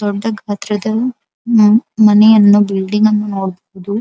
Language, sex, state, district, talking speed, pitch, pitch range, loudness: Kannada, female, Karnataka, Dharwad, 90 wpm, 210 Hz, 205-220 Hz, -12 LUFS